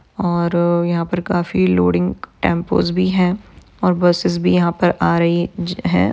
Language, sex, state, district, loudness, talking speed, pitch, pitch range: Hindi, female, Maharashtra, Aurangabad, -17 LUFS, 165 wpm, 175 Hz, 170-180 Hz